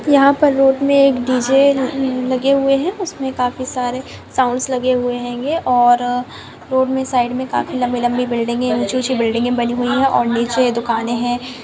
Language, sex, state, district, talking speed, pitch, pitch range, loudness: Hindi, female, Bihar, Vaishali, 175 wpm, 255 Hz, 245-270 Hz, -16 LUFS